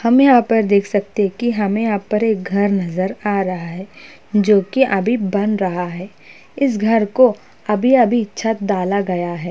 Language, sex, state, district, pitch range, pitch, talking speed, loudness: Hindi, female, Maharashtra, Chandrapur, 195-225 Hz, 205 Hz, 190 wpm, -17 LUFS